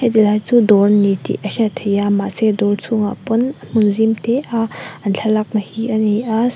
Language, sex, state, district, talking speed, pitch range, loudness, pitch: Mizo, female, Mizoram, Aizawl, 210 wpm, 205-225 Hz, -16 LUFS, 215 Hz